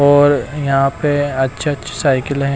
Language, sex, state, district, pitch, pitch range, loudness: Hindi, male, Himachal Pradesh, Shimla, 140 Hz, 135-145 Hz, -16 LUFS